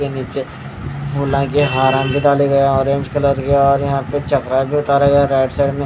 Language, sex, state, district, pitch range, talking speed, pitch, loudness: Hindi, male, Haryana, Rohtak, 135-140 Hz, 135 wpm, 140 Hz, -16 LUFS